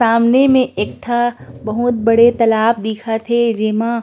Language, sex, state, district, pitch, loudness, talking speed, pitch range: Chhattisgarhi, female, Chhattisgarh, Korba, 230 Hz, -15 LUFS, 150 wpm, 225-240 Hz